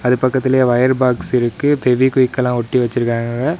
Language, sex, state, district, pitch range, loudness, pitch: Tamil, male, Tamil Nadu, Namakkal, 120-130 Hz, -15 LUFS, 125 Hz